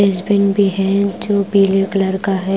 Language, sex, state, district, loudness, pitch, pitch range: Hindi, female, Punjab, Kapurthala, -15 LUFS, 195 Hz, 195-200 Hz